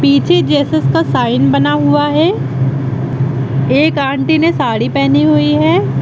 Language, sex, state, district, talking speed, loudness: Hindi, female, Uttar Pradesh, Lucknow, 140 wpm, -12 LUFS